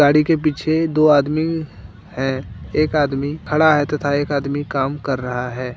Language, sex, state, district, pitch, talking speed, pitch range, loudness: Hindi, male, Jharkhand, Deoghar, 145 Hz, 175 wpm, 130-155 Hz, -19 LUFS